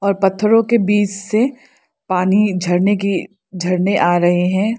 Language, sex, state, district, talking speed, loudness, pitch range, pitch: Hindi, female, Arunachal Pradesh, Lower Dibang Valley, 150 wpm, -16 LUFS, 185-215 Hz, 200 Hz